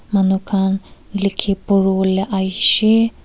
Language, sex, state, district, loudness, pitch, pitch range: Nagamese, female, Nagaland, Kohima, -16 LUFS, 195 Hz, 190-200 Hz